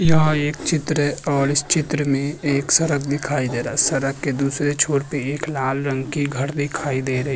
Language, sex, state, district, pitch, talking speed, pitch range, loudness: Hindi, male, Uttarakhand, Tehri Garhwal, 145 Hz, 230 wpm, 135-150 Hz, -20 LUFS